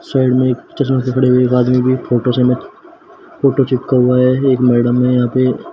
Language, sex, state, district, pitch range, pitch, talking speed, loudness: Hindi, male, Uttar Pradesh, Shamli, 125-130 Hz, 125 Hz, 210 wpm, -14 LUFS